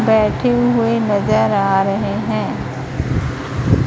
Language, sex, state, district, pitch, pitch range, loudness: Hindi, female, Chhattisgarh, Raipur, 195 Hz, 130-215 Hz, -17 LUFS